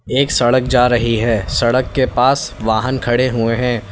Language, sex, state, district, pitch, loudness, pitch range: Hindi, male, Uttar Pradesh, Lalitpur, 120 Hz, -15 LUFS, 115-125 Hz